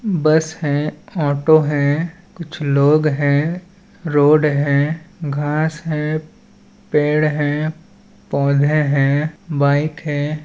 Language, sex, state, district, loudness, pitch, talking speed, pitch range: Chhattisgarhi, male, Chhattisgarh, Balrampur, -17 LUFS, 150 Hz, 100 wpm, 145-160 Hz